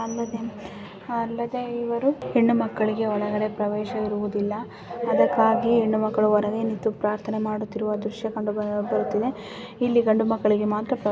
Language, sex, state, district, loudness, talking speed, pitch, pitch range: Kannada, female, Karnataka, Bijapur, -24 LUFS, 120 wpm, 215 Hz, 210-230 Hz